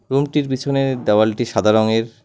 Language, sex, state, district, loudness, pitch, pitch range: Bengali, male, West Bengal, Alipurduar, -18 LUFS, 120 Hz, 110-135 Hz